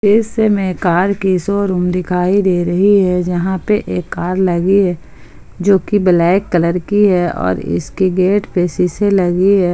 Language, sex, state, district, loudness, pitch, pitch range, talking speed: Hindi, male, Jharkhand, Ranchi, -14 LUFS, 185 Hz, 175-200 Hz, 175 wpm